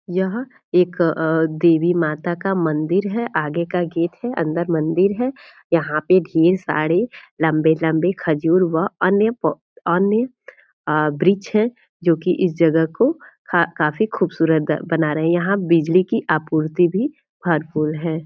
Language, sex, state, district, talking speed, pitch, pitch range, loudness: Hindi, female, Bihar, Purnia, 150 wpm, 170 Hz, 160-195 Hz, -19 LUFS